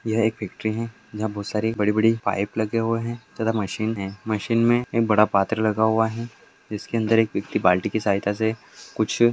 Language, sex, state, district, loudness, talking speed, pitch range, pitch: Hindi, male, Karnataka, Raichur, -23 LUFS, 205 wpm, 105-115 Hz, 110 Hz